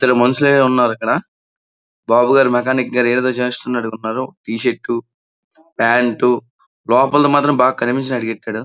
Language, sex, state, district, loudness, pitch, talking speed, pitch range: Telugu, male, Andhra Pradesh, Srikakulam, -16 LUFS, 125 Hz, 125 wpm, 120-130 Hz